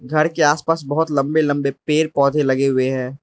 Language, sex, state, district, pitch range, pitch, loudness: Hindi, male, Arunachal Pradesh, Lower Dibang Valley, 135-155 Hz, 145 Hz, -18 LUFS